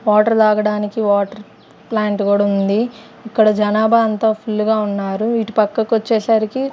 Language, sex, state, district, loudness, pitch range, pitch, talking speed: Telugu, female, Andhra Pradesh, Sri Satya Sai, -16 LUFS, 210-225 Hz, 215 Hz, 135 wpm